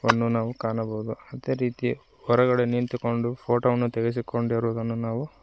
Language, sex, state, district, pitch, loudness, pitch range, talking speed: Kannada, male, Karnataka, Koppal, 120 Hz, -26 LUFS, 115-120 Hz, 120 wpm